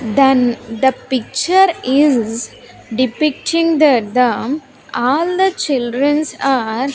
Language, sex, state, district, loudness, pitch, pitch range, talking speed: English, female, Andhra Pradesh, Sri Satya Sai, -15 LUFS, 265 Hz, 245-300 Hz, 105 wpm